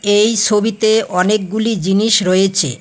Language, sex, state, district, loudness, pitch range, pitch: Bengali, female, West Bengal, Alipurduar, -14 LUFS, 190-220 Hz, 210 Hz